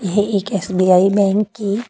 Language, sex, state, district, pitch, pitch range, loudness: Hindi, female, Uttar Pradesh, Jalaun, 200 Hz, 190-205 Hz, -16 LUFS